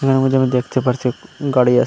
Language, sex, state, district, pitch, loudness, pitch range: Bengali, male, Assam, Hailakandi, 130 Hz, -17 LUFS, 125-135 Hz